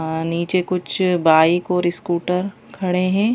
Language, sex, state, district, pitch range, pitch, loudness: Hindi, female, Madhya Pradesh, Bhopal, 170-185 Hz, 180 Hz, -19 LUFS